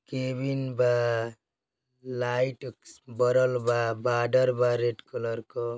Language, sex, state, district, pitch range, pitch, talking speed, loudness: Bhojpuri, male, Uttar Pradesh, Deoria, 120-130 Hz, 125 Hz, 115 wpm, -27 LUFS